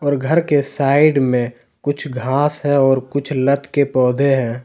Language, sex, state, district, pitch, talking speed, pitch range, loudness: Hindi, male, Jharkhand, Deoghar, 140 Hz, 180 wpm, 130-145 Hz, -17 LUFS